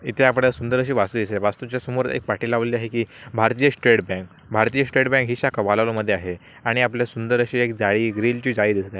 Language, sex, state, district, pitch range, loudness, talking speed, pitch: Marathi, male, Maharashtra, Sindhudurg, 110-125 Hz, -21 LUFS, 235 wpm, 120 Hz